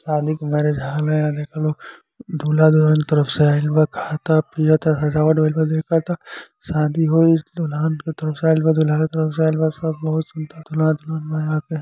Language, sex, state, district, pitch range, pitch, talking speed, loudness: Bhojpuri, male, Uttar Pradesh, Gorakhpur, 155-160 Hz, 155 Hz, 240 wpm, -19 LUFS